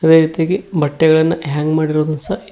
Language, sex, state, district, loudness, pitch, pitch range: Kannada, male, Karnataka, Koppal, -15 LUFS, 160 Hz, 155-160 Hz